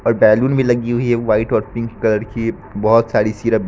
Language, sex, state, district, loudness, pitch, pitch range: Hindi, male, Bihar, Katihar, -16 LUFS, 115 Hz, 110-120 Hz